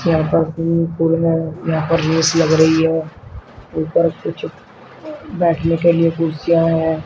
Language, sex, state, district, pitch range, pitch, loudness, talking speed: Hindi, male, Uttar Pradesh, Shamli, 160-165 Hz, 165 Hz, -16 LUFS, 155 wpm